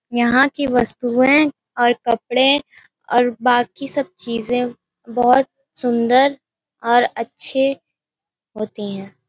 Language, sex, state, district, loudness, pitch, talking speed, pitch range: Hindi, female, Uttar Pradesh, Varanasi, -17 LUFS, 245 Hz, 105 wpm, 235-270 Hz